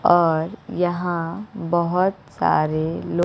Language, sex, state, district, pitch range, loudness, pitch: Hindi, female, Bihar, West Champaran, 165-180 Hz, -22 LUFS, 175 Hz